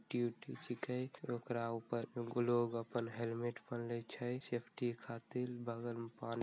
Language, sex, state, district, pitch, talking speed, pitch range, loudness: Maithili, male, Bihar, Begusarai, 120 Hz, 130 wpm, 115-120 Hz, -42 LUFS